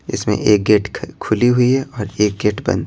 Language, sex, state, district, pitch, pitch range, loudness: Hindi, male, Bihar, Patna, 105 Hz, 105-125 Hz, -16 LUFS